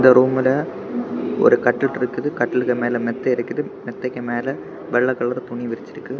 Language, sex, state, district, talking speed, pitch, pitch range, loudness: Tamil, male, Tamil Nadu, Kanyakumari, 145 wpm, 125 Hz, 120-130 Hz, -21 LUFS